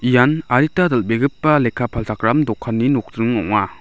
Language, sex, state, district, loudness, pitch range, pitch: Garo, male, Meghalaya, South Garo Hills, -17 LUFS, 115-150 Hz, 125 Hz